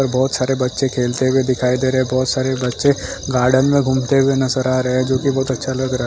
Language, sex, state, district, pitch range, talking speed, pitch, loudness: Hindi, male, Chhattisgarh, Sukma, 130-135 Hz, 265 wpm, 130 Hz, -17 LUFS